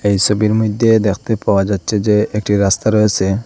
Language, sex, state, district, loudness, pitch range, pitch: Bengali, male, Assam, Hailakandi, -15 LUFS, 100-110 Hz, 105 Hz